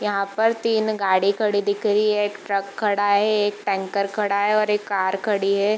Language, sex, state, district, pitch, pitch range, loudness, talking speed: Hindi, female, Bihar, Gopalganj, 205 Hz, 200-210 Hz, -21 LUFS, 220 wpm